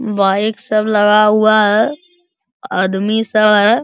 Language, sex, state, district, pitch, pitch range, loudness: Hindi, male, Bihar, Bhagalpur, 215 Hz, 210-230 Hz, -13 LUFS